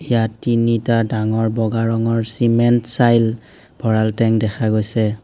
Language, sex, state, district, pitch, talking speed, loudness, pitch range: Assamese, male, Assam, Hailakandi, 115 Hz, 125 wpm, -17 LUFS, 110-115 Hz